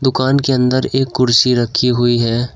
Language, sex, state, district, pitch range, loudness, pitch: Hindi, male, Uttar Pradesh, Shamli, 120-130 Hz, -14 LUFS, 125 Hz